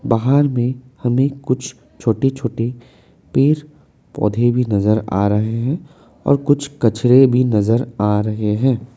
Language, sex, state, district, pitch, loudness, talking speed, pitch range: Hindi, male, Assam, Kamrup Metropolitan, 125 Hz, -17 LUFS, 140 wpm, 110-135 Hz